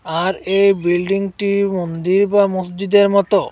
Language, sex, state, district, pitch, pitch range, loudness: Bengali, male, Assam, Hailakandi, 195 Hz, 180-200 Hz, -16 LUFS